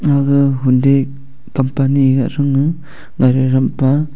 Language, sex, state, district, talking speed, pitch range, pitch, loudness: Wancho, male, Arunachal Pradesh, Longding, 145 wpm, 130-140 Hz, 135 Hz, -14 LUFS